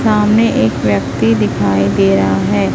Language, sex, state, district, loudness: Hindi, female, Chhattisgarh, Raipur, -13 LUFS